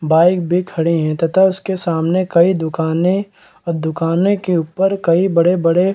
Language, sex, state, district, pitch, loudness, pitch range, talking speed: Hindi, male, Bihar, Kishanganj, 175 Hz, -16 LUFS, 165-185 Hz, 160 wpm